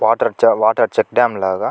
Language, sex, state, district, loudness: Telugu, male, Andhra Pradesh, Chittoor, -15 LUFS